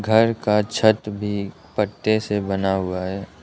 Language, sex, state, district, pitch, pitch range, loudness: Hindi, male, Arunachal Pradesh, Lower Dibang Valley, 105 Hz, 95-110 Hz, -22 LUFS